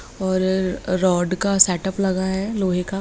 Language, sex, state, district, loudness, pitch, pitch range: Hindi, female, Bihar, Jamui, -20 LUFS, 190 Hz, 185-195 Hz